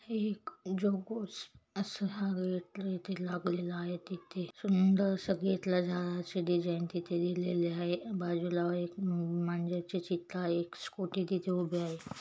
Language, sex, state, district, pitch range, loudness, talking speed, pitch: Marathi, female, Maharashtra, Chandrapur, 175-190 Hz, -35 LUFS, 115 wpm, 180 Hz